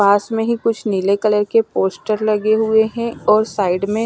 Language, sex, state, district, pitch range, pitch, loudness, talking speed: Hindi, female, Himachal Pradesh, Shimla, 200-225 Hz, 215 Hz, -17 LUFS, 205 wpm